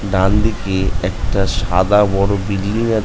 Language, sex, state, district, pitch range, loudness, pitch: Bengali, male, West Bengal, North 24 Parganas, 95-105 Hz, -17 LUFS, 100 Hz